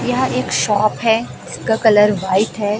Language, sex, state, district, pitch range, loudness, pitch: Hindi, female, Chhattisgarh, Raipur, 205-220 Hz, -16 LUFS, 210 Hz